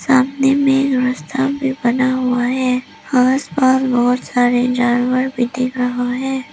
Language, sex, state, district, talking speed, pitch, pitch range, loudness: Hindi, female, Arunachal Pradesh, Lower Dibang Valley, 145 wpm, 255 Hz, 245-265 Hz, -16 LUFS